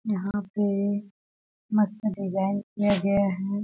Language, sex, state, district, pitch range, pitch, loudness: Hindi, female, Chhattisgarh, Balrampur, 200-210 Hz, 205 Hz, -26 LUFS